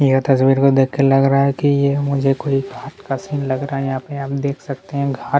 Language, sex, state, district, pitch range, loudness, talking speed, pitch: Hindi, male, Chhattisgarh, Kabirdham, 135-140 Hz, -18 LUFS, 275 wpm, 140 Hz